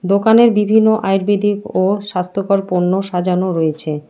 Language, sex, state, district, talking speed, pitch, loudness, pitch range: Bengali, female, West Bengal, Alipurduar, 115 wpm, 195 Hz, -15 LUFS, 180-205 Hz